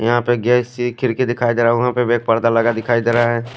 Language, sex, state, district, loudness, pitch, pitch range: Hindi, male, Odisha, Khordha, -17 LUFS, 120 Hz, 115-120 Hz